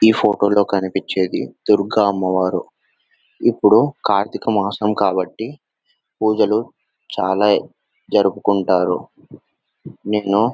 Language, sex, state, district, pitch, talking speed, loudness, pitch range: Telugu, male, Telangana, Nalgonda, 100 Hz, 70 wpm, -18 LUFS, 95-105 Hz